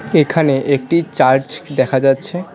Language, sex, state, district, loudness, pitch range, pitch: Bengali, male, West Bengal, Cooch Behar, -15 LUFS, 135-165 Hz, 140 Hz